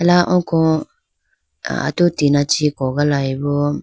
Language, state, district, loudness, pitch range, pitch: Idu Mishmi, Arunachal Pradesh, Lower Dibang Valley, -17 LUFS, 145-170 Hz, 145 Hz